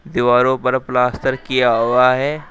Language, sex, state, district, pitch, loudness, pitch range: Hindi, male, Uttar Pradesh, Shamli, 125 Hz, -16 LUFS, 125-130 Hz